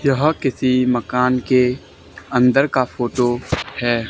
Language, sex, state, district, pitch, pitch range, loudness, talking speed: Hindi, male, Haryana, Charkhi Dadri, 125 Hz, 120-135 Hz, -18 LUFS, 115 wpm